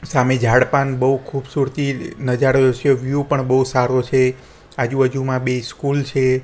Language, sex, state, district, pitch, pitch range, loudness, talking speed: Gujarati, male, Gujarat, Gandhinagar, 130 Hz, 130-140 Hz, -18 LUFS, 150 wpm